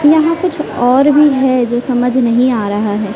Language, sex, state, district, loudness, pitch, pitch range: Hindi, female, Chhattisgarh, Raipur, -12 LUFS, 250 Hz, 240-295 Hz